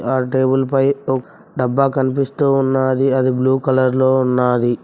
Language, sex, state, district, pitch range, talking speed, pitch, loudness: Telugu, male, Telangana, Mahabubabad, 130-135 Hz, 150 wpm, 130 Hz, -16 LUFS